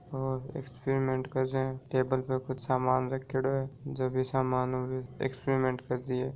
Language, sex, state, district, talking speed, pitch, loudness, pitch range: Marwari, male, Rajasthan, Nagaur, 190 wpm, 130 Hz, -32 LUFS, 130-135 Hz